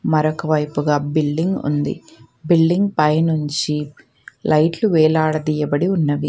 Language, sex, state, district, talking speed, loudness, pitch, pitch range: Telugu, female, Telangana, Hyderabad, 75 wpm, -18 LUFS, 155 Hz, 150-160 Hz